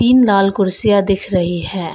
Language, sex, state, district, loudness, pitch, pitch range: Hindi, female, Arunachal Pradesh, Longding, -15 LUFS, 195 Hz, 185-205 Hz